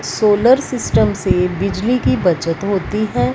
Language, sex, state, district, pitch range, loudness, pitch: Hindi, female, Punjab, Fazilka, 180-220 Hz, -16 LUFS, 200 Hz